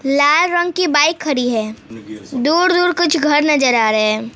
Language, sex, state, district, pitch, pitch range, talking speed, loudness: Hindi, female, West Bengal, Alipurduar, 290 Hz, 225-345 Hz, 190 wpm, -14 LUFS